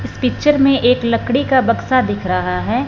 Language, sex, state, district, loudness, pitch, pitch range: Hindi, female, Punjab, Fazilka, -15 LUFS, 245 Hz, 230-265 Hz